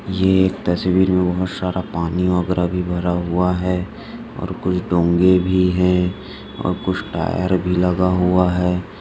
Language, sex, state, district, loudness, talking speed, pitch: Hindi, male, Maharashtra, Sindhudurg, -19 LUFS, 145 wpm, 90 Hz